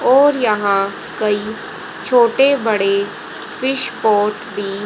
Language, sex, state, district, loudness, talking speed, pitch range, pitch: Hindi, female, Haryana, Rohtak, -16 LUFS, 100 wpm, 205-250 Hz, 215 Hz